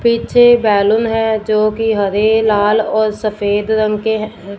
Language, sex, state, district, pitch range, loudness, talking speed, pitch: Hindi, female, Punjab, Fazilka, 210-220 Hz, -14 LUFS, 155 wpm, 215 Hz